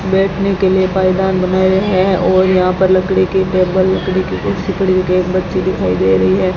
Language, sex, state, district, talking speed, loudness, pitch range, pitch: Hindi, female, Rajasthan, Bikaner, 210 wpm, -14 LUFS, 185-190 Hz, 185 Hz